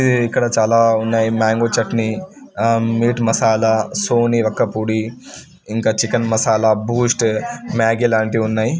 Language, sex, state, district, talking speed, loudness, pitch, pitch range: Telugu, male, Telangana, Karimnagar, 125 wpm, -17 LUFS, 115 Hz, 110-120 Hz